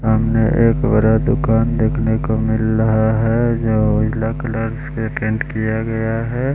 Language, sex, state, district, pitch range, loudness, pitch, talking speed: Hindi, male, Bihar, West Champaran, 110-115 Hz, -17 LUFS, 115 Hz, 155 wpm